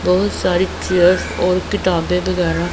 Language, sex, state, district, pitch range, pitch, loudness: Hindi, female, Punjab, Pathankot, 175-185 Hz, 180 Hz, -17 LUFS